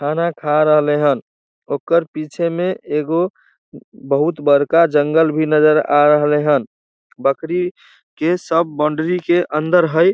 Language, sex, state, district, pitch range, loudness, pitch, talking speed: Maithili, male, Bihar, Samastipur, 150-170 Hz, -16 LUFS, 155 Hz, 135 wpm